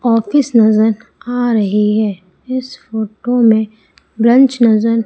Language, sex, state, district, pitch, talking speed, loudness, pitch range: Hindi, female, Madhya Pradesh, Umaria, 225 Hz, 120 wpm, -13 LUFS, 215-245 Hz